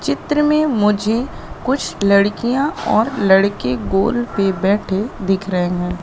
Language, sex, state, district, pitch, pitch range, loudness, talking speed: Hindi, female, Madhya Pradesh, Katni, 200 Hz, 195-240 Hz, -17 LUFS, 130 wpm